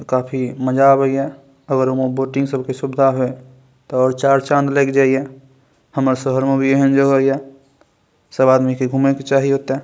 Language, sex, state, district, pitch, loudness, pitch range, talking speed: Maithili, male, Bihar, Saharsa, 135 Hz, -16 LUFS, 130-135 Hz, 210 wpm